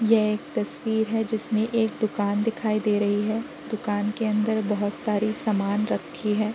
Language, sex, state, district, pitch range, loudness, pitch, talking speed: Hindi, female, Uttar Pradesh, Varanasi, 210-220 Hz, -25 LUFS, 215 Hz, 175 wpm